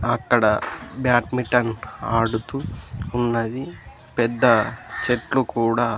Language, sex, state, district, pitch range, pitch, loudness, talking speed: Telugu, male, Andhra Pradesh, Sri Satya Sai, 115-125 Hz, 120 Hz, -22 LUFS, 70 wpm